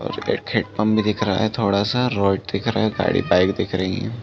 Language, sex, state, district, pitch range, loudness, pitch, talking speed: Hindi, male, Uttar Pradesh, Jalaun, 95-110 Hz, -21 LUFS, 105 Hz, 255 wpm